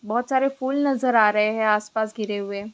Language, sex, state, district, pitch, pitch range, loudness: Hindi, female, Bihar, Jamui, 220 Hz, 210-260 Hz, -22 LUFS